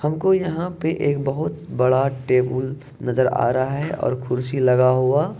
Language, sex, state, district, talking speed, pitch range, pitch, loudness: Hindi, male, Bihar, Purnia, 165 wpm, 130-155 Hz, 135 Hz, -21 LUFS